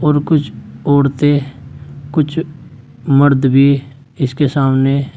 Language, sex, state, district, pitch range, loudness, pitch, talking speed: Hindi, male, Uttar Pradesh, Saharanpur, 135-145 Hz, -14 LUFS, 140 Hz, 95 wpm